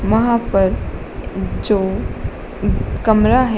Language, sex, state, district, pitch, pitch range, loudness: Hindi, female, Uttar Pradesh, Shamli, 215 Hz, 195-235 Hz, -18 LUFS